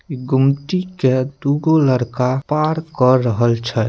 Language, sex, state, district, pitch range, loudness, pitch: Maithili, male, Bihar, Samastipur, 125-155 Hz, -17 LUFS, 135 Hz